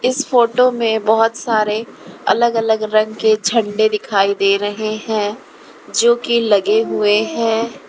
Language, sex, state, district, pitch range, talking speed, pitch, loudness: Hindi, female, Uttar Pradesh, Lalitpur, 215-230 Hz, 145 wpm, 220 Hz, -16 LUFS